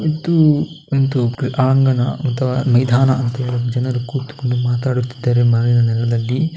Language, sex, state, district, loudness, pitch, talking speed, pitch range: Kannada, male, Karnataka, Dakshina Kannada, -17 LUFS, 125 Hz, 120 wpm, 120-135 Hz